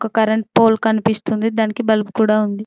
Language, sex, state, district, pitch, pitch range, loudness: Telugu, female, Telangana, Mahabubabad, 220 Hz, 215-220 Hz, -17 LUFS